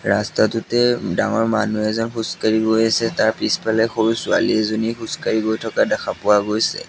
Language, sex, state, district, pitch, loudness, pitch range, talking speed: Assamese, male, Assam, Sonitpur, 110 Hz, -19 LUFS, 110-115 Hz, 155 wpm